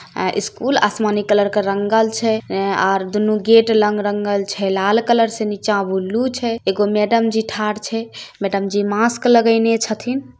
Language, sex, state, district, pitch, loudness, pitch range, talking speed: Maithili, female, Bihar, Samastipur, 215 Hz, -17 LUFS, 205-230 Hz, 160 wpm